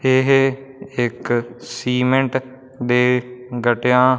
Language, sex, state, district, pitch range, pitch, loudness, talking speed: Punjabi, male, Punjab, Fazilka, 125-130 Hz, 125 Hz, -19 LUFS, 70 wpm